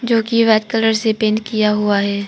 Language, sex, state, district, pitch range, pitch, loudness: Hindi, female, Arunachal Pradesh, Papum Pare, 210-225 Hz, 220 Hz, -16 LUFS